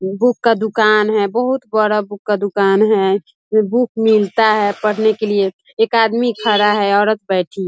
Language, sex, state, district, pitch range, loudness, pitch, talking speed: Hindi, female, Bihar, East Champaran, 205-225 Hz, -15 LUFS, 215 Hz, 180 wpm